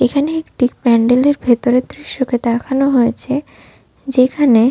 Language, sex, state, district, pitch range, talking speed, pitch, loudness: Bengali, female, West Bengal, Jhargram, 240-275 Hz, 115 wpm, 255 Hz, -15 LUFS